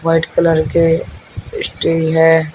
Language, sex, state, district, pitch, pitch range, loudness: Hindi, male, Uttar Pradesh, Shamli, 165 Hz, 160-165 Hz, -14 LUFS